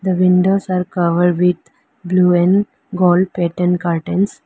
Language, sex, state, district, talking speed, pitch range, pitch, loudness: English, female, Arunachal Pradesh, Lower Dibang Valley, 135 wpm, 175-185 Hz, 180 Hz, -15 LUFS